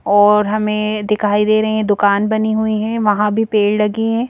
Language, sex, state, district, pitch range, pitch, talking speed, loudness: Hindi, female, Madhya Pradesh, Bhopal, 210-220 Hz, 210 Hz, 210 wpm, -15 LUFS